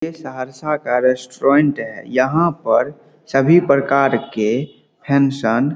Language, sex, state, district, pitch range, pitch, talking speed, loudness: Hindi, male, Bihar, Saharsa, 130-150 Hz, 140 Hz, 115 wpm, -17 LUFS